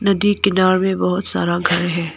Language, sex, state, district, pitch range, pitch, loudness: Hindi, female, Arunachal Pradesh, Longding, 175-195 Hz, 185 Hz, -17 LUFS